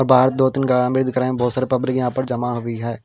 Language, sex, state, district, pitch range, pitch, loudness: Hindi, male, Himachal Pradesh, Shimla, 125-130 Hz, 130 Hz, -19 LUFS